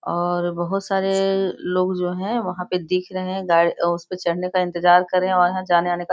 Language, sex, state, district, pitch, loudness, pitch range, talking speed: Hindi, female, Bihar, Muzaffarpur, 180 Hz, -21 LUFS, 175-185 Hz, 225 wpm